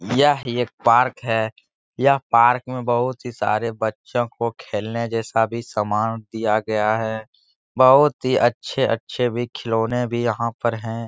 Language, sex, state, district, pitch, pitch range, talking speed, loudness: Hindi, male, Bihar, Jahanabad, 115 Hz, 110-125 Hz, 150 wpm, -21 LUFS